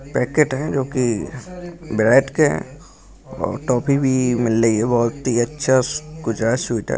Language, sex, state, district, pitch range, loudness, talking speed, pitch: Hindi, male, Bihar, Jamui, 115-145 Hz, -19 LUFS, 170 wpm, 125 Hz